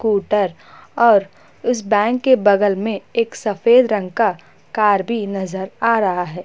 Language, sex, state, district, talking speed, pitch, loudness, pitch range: Hindi, female, Maharashtra, Chandrapur, 160 wpm, 210 Hz, -17 LUFS, 195-230 Hz